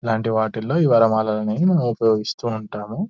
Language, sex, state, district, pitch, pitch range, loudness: Telugu, male, Telangana, Nalgonda, 110 Hz, 110-120 Hz, -20 LUFS